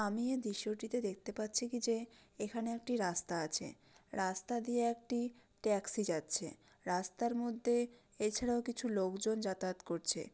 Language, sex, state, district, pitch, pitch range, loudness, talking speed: Bengali, female, West Bengal, Dakshin Dinajpur, 220 Hz, 195-240 Hz, -38 LUFS, 130 wpm